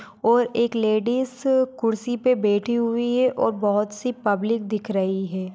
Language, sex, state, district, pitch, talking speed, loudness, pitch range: Hindi, female, Maharashtra, Sindhudurg, 230 Hz, 160 wpm, -22 LUFS, 210-245 Hz